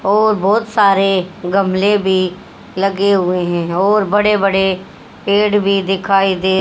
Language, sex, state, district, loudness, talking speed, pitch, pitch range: Hindi, female, Haryana, Jhajjar, -14 LUFS, 135 wpm, 195 Hz, 190-205 Hz